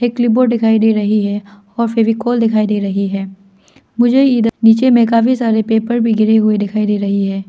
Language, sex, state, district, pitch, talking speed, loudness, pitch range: Hindi, female, Arunachal Pradesh, Lower Dibang Valley, 220 Hz, 200 wpm, -13 LUFS, 205-235 Hz